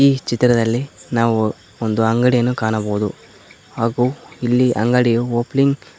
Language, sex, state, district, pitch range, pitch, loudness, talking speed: Kannada, male, Karnataka, Koppal, 115-125 Hz, 120 Hz, -18 LUFS, 110 wpm